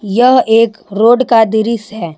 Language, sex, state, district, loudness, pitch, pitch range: Hindi, female, Jharkhand, Ranchi, -11 LUFS, 225 Hz, 220-235 Hz